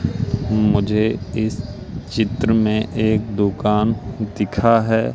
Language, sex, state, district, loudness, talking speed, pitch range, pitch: Hindi, male, Madhya Pradesh, Katni, -19 LUFS, 95 wpm, 105-115 Hz, 110 Hz